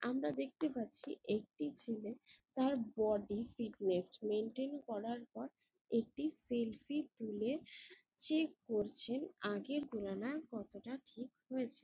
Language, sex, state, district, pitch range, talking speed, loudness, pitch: Bengali, female, West Bengal, Jalpaiguri, 215-280 Hz, 105 wpm, -40 LUFS, 240 Hz